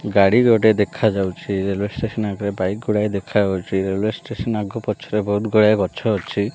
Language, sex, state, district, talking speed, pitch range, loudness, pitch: Odia, male, Odisha, Malkangiri, 155 wpm, 100-110 Hz, -20 LUFS, 105 Hz